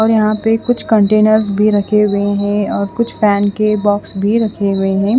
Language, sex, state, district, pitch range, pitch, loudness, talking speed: Hindi, female, Odisha, Khordha, 200-215 Hz, 210 Hz, -14 LUFS, 210 wpm